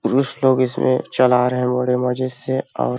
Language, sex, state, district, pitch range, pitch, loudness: Hindi, male, Chhattisgarh, Balrampur, 125-130 Hz, 125 Hz, -19 LUFS